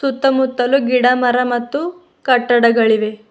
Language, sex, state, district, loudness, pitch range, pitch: Kannada, female, Karnataka, Bidar, -15 LUFS, 240-270 Hz, 250 Hz